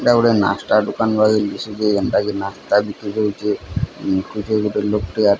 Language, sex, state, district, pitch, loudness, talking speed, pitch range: Odia, male, Odisha, Sambalpur, 105 Hz, -19 LUFS, 190 wpm, 100-110 Hz